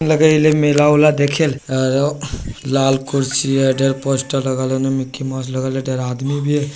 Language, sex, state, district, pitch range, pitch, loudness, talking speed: Hindi, male, Bihar, Jamui, 130-145 Hz, 135 Hz, -17 LUFS, 160 wpm